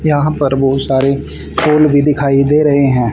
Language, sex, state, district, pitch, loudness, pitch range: Hindi, male, Haryana, Jhajjar, 140 Hz, -12 LUFS, 135-150 Hz